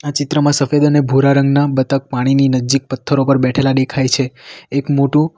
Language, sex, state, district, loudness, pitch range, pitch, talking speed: Gujarati, male, Gujarat, Valsad, -14 LUFS, 135-145 Hz, 140 Hz, 165 wpm